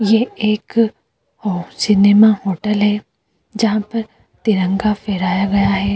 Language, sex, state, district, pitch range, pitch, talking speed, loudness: Hindi, female, Uttar Pradesh, Jyotiba Phule Nagar, 195-215 Hz, 210 Hz, 110 wpm, -16 LUFS